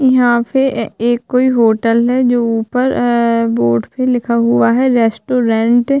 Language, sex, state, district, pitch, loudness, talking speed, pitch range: Hindi, female, Uttarakhand, Tehri Garhwal, 240 Hz, -13 LUFS, 170 wpm, 230-255 Hz